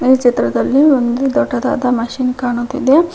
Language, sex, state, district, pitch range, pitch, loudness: Kannada, female, Karnataka, Koppal, 245-275 Hz, 255 Hz, -14 LUFS